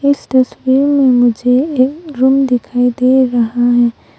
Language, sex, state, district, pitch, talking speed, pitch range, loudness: Hindi, female, Arunachal Pradesh, Longding, 255 Hz, 145 wpm, 245-270 Hz, -12 LUFS